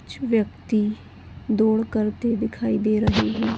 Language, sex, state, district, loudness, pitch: Hindi, female, Goa, North and South Goa, -23 LUFS, 215 Hz